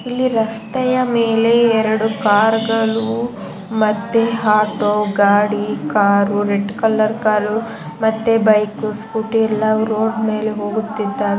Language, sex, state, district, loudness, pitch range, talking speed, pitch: Kannada, female, Karnataka, Mysore, -17 LUFS, 210-225 Hz, 100 wpm, 220 Hz